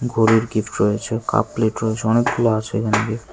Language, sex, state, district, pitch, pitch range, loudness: Bengali, male, Tripura, West Tripura, 110 Hz, 110-115 Hz, -19 LUFS